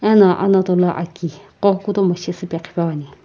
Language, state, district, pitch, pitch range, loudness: Sumi, Nagaland, Kohima, 180 Hz, 170-195 Hz, -18 LUFS